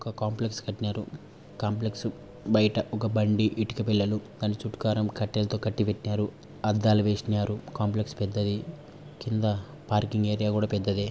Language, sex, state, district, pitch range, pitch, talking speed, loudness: Telugu, male, Andhra Pradesh, Anantapur, 105-110 Hz, 105 Hz, 125 wpm, -28 LUFS